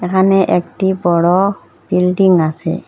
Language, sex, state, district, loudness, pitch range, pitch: Bengali, female, Assam, Hailakandi, -14 LUFS, 170-190 Hz, 180 Hz